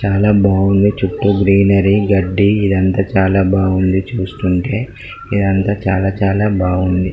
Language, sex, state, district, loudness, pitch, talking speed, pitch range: Telugu, male, Telangana, Karimnagar, -14 LUFS, 95 Hz, 110 wpm, 95-100 Hz